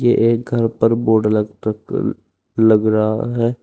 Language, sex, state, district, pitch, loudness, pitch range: Hindi, male, Uttar Pradesh, Saharanpur, 115 Hz, -17 LUFS, 110-115 Hz